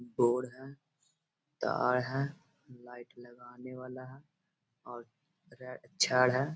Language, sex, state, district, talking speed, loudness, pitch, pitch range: Hindi, male, Bihar, Gaya, 90 wpm, -32 LUFS, 130 Hz, 125-145 Hz